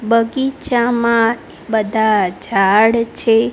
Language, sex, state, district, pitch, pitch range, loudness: Gujarati, female, Gujarat, Gandhinagar, 230 Hz, 220-235 Hz, -15 LUFS